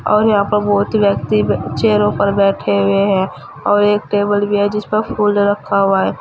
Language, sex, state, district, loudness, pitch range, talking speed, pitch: Hindi, female, Uttar Pradesh, Saharanpur, -15 LUFS, 195-205 Hz, 215 wpm, 205 Hz